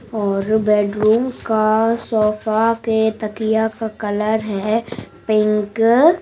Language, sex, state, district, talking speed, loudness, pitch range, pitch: Hindi, female, Bihar, Saharsa, 105 wpm, -18 LUFS, 215-225 Hz, 220 Hz